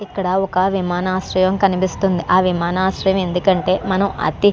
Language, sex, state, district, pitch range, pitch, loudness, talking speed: Telugu, female, Andhra Pradesh, Krishna, 185-190 Hz, 185 Hz, -17 LUFS, 130 wpm